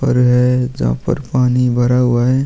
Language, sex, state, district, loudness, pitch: Hindi, male, Chhattisgarh, Sukma, -15 LUFS, 125 Hz